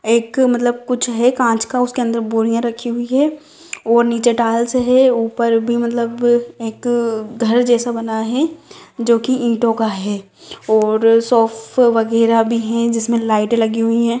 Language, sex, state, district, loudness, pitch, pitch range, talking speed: Hindi, female, Jharkhand, Sahebganj, -16 LUFS, 235 Hz, 225-245 Hz, 165 wpm